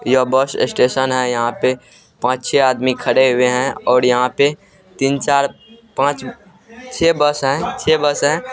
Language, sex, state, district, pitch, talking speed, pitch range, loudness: Hindi, male, Bihar, Purnia, 135 Hz, 170 wpm, 125-150 Hz, -16 LUFS